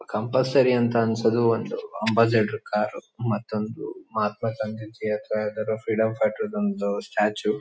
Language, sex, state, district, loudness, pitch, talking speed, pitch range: Kannada, male, Karnataka, Shimoga, -25 LUFS, 110 Hz, 125 wpm, 105-120 Hz